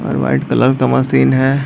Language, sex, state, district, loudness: Hindi, male, Bihar, Madhepura, -14 LUFS